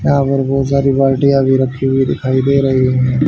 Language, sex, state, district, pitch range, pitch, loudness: Hindi, male, Haryana, Jhajjar, 130-140 Hz, 135 Hz, -13 LUFS